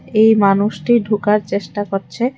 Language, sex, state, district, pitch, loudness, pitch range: Bengali, female, Tripura, West Tripura, 210 Hz, -16 LUFS, 200-225 Hz